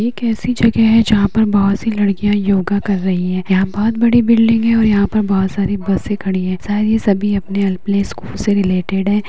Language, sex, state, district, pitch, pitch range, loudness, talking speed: Hindi, female, Uttar Pradesh, Hamirpur, 205 Hz, 195-220 Hz, -15 LUFS, 230 wpm